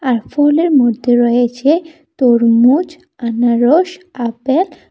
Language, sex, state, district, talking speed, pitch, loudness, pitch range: Bengali, female, Tripura, West Tripura, 85 wpm, 265 Hz, -13 LUFS, 240-325 Hz